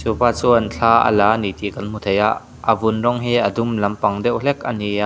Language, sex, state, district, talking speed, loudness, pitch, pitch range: Mizo, male, Mizoram, Aizawl, 260 wpm, -18 LUFS, 110 Hz, 105-120 Hz